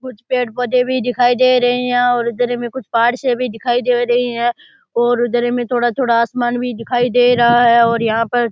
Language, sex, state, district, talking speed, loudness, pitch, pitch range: Rajasthani, male, Rajasthan, Nagaur, 245 wpm, -15 LUFS, 245 Hz, 240-250 Hz